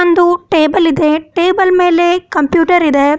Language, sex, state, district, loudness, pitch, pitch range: Kannada, female, Karnataka, Bidar, -11 LUFS, 345 Hz, 315-355 Hz